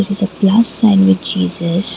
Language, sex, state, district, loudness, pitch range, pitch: English, female, Assam, Kamrup Metropolitan, -13 LUFS, 180-205 Hz, 195 Hz